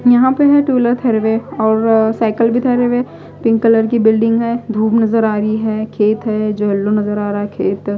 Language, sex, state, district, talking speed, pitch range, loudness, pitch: Hindi, female, Odisha, Malkangiri, 225 wpm, 215-235 Hz, -14 LUFS, 225 Hz